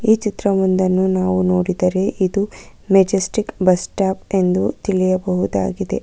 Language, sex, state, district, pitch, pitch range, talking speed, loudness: Kannada, female, Karnataka, Bangalore, 185 Hz, 185-195 Hz, 110 wpm, -18 LUFS